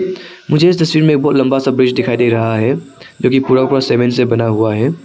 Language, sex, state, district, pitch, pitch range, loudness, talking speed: Hindi, male, Arunachal Pradesh, Papum Pare, 135 Hz, 120-150 Hz, -13 LUFS, 260 wpm